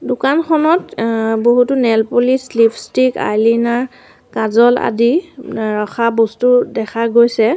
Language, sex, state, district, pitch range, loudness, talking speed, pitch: Assamese, female, Assam, Sonitpur, 225-255 Hz, -14 LUFS, 105 wpm, 235 Hz